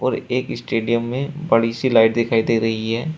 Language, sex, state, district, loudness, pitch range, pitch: Hindi, male, Uttar Pradesh, Shamli, -19 LUFS, 115-125 Hz, 115 Hz